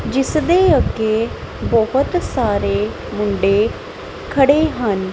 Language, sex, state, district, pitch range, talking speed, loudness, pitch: Punjabi, female, Punjab, Kapurthala, 205-275 Hz, 95 wpm, -17 LUFS, 225 Hz